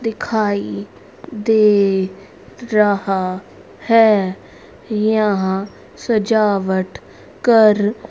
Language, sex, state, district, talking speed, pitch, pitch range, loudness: Hindi, female, Haryana, Rohtak, 50 wpm, 210 Hz, 195-220 Hz, -16 LUFS